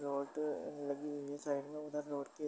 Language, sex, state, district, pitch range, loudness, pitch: Hindi, male, Uttar Pradesh, Varanasi, 140-150 Hz, -42 LUFS, 145 Hz